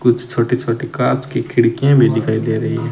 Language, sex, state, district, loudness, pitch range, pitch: Hindi, male, Rajasthan, Bikaner, -16 LUFS, 115-125 Hz, 120 Hz